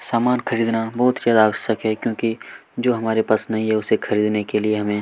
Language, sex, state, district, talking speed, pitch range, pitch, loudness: Hindi, male, Chhattisgarh, Kabirdham, 205 wpm, 110-115 Hz, 110 Hz, -20 LUFS